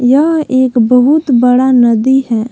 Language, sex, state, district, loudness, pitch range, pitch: Hindi, female, Jharkhand, Palamu, -10 LUFS, 245-265 Hz, 255 Hz